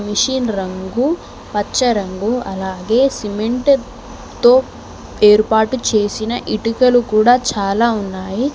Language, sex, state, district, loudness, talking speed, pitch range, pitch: Telugu, female, Telangana, Mahabubabad, -16 LUFS, 90 wpm, 205-250 Hz, 220 Hz